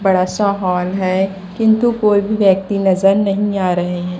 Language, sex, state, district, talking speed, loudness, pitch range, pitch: Hindi, female, Chhattisgarh, Raipur, 185 wpm, -15 LUFS, 185-205 Hz, 195 Hz